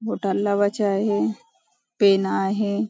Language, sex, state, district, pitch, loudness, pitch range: Marathi, female, Maharashtra, Nagpur, 200 Hz, -22 LUFS, 195-210 Hz